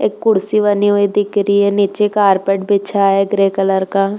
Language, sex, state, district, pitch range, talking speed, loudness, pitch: Hindi, female, Uttar Pradesh, Jalaun, 195-205 Hz, 200 wpm, -14 LUFS, 200 Hz